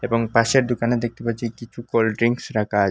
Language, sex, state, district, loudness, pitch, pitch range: Bengali, male, Assam, Hailakandi, -21 LUFS, 115 Hz, 115-120 Hz